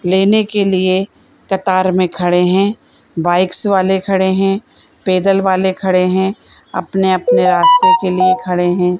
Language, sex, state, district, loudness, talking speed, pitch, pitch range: Hindi, female, Madhya Pradesh, Bhopal, -14 LUFS, 140 wpm, 190 Hz, 185-195 Hz